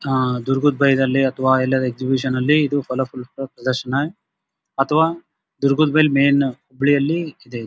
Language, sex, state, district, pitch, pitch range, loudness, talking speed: Kannada, male, Karnataka, Dharwad, 135 Hz, 130-145 Hz, -19 LUFS, 135 wpm